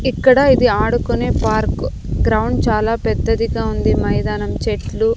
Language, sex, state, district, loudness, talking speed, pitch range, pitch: Telugu, female, Andhra Pradesh, Sri Satya Sai, -17 LUFS, 115 wpm, 220-270 Hz, 250 Hz